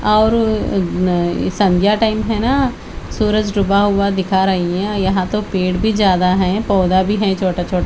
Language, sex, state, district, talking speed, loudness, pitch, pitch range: Hindi, female, Haryana, Charkhi Dadri, 185 wpm, -16 LUFS, 195 Hz, 185-215 Hz